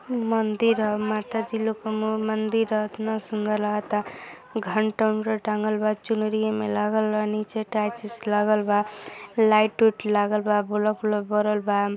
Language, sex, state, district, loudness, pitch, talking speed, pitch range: Hindi, female, Uttar Pradesh, Gorakhpur, -24 LUFS, 215 Hz, 160 wpm, 210-220 Hz